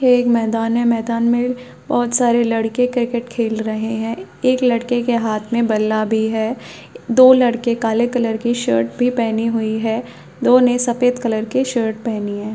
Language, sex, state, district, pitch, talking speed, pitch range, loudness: Hindi, female, Bihar, Madhepura, 235 Hz, 185 wpm, 220-245 Hz, -17 LUFS